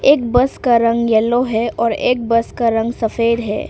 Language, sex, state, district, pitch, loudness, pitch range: Hindi, female, Arunachal Pradesh, Papum Pare, 230 Hz, -16 LUFS, 225-245 Hz